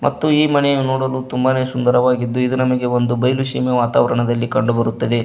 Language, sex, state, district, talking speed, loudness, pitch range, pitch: Kannada, male, Karnataka, Koppal, 160 wpm, -17 LUFS, 120-130 Hz, 125 Hz